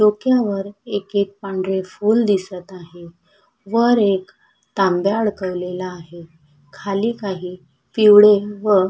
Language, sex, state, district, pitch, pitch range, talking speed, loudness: Marathi, female, Maharashtra, Sindhudurg, 195 Hz, 180-210 Hz, 110 wpm, -18 LUFS